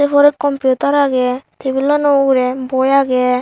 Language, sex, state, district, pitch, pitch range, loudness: Chakma, female, Tripura, Unakoti, 270 Hz, 260-285 Hz, -14 LUFS